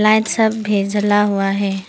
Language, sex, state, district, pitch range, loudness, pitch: Hindi, female, Arunachal Pradesh, Papum Pare, 200-215 Hz, -16 LUFS, 205 Hz